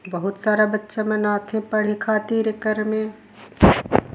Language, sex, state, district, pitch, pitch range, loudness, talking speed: Surgujia, female, Chhattisgarh, Sarguja, 215 Hz, 210-215 Hz, -21 LUFS, 145 wpm